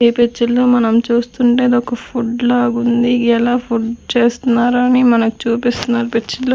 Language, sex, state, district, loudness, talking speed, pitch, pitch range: Telugu, female, Andhra Pradesh, Sri Satya Sai, -14 LUFS, 135 wpm, 240 Hz, 235-245 Hz